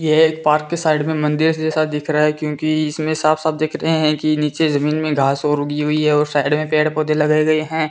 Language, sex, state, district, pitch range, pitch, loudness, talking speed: Hindi, female, Rajasthan, Bikaner, 150-155 Hz, 155 Hz, -17 LUFS, 265 wpm